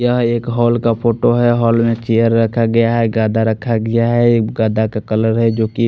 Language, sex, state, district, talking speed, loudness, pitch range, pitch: Hindi, male, Odisha, Khordha, 225 wpm, -15 LUFS, 110-120 Hz, 115 Hz